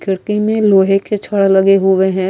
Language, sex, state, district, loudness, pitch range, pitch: Urdu, female, Uttar Pradesh, Budaun, -13 LUFS, 190-210 Hz, 195 Hz